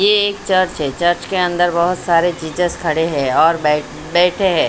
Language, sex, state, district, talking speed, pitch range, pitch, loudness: Hindi, female, Maharashtra, Mumbai Suburban, 190 wpm, 160-185 Hz, 175 Hz, -16 LUFS